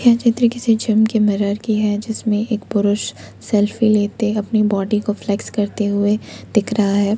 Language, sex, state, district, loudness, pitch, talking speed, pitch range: Hindi, female, Jharkhand, Ranchi, -18 LUFS, 210 Hz, 185 wpm, 205-220 Hz